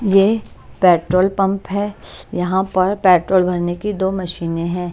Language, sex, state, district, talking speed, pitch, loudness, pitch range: Hindi, female, Chhattisgarh, Raipur, 145 wpm, 185 Hz, -17 LUFS, 180-195 Hz